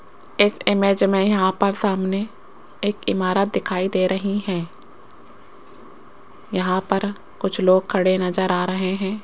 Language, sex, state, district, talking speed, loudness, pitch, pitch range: Hindi, female, Rajasthan, Jaipur, 135 wpm, -21 LUFS, 195 Hz, 185-200 Hz